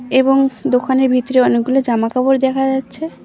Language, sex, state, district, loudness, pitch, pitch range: Bengali, female, West Bengal, Cooch Behar, -15 LUFS, 260 Hz, 250-270 Hz